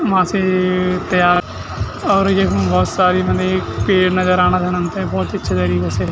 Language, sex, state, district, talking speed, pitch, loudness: Garhwali, male, Uttarakhand, Tehri Garhwal, 165 wpm, 175 Hz, -16 LUFS